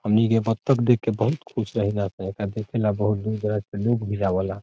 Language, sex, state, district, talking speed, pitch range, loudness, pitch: Bhojpuri, male, Bihar, Saran, 220 wpm, 100-115 Hz, -24 LUFS, 105 Hz